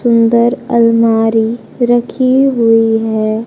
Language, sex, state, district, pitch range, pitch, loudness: Hindi, female, Bihar, Kaimur, 225-240 Hz, 230 Hz, -11 LUFS